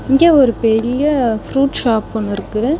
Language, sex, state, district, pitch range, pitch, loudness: Tamil, female, Tamil Nadu, Chennai, 220-275 Hz, 240 Hz, -15 LUFS